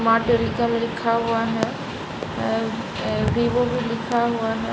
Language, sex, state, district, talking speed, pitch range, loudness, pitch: Hindi, female, Bihar, Saran, 140 wpm, 225-235 Hz, -23 LUFS, 230 Hz